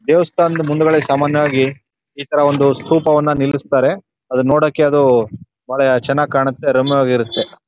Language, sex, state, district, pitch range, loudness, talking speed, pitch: Kannada, male, Karnataka, Chamarajanagar, 135-150 Hz, -15 LUFS, 115 wpm, 140 Hz